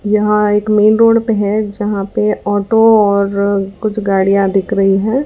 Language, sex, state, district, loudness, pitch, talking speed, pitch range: Hindi, female, Karnataka, Bangalore, -13 LUFS, 210 Hz, 170 wpm, 200-215 Hz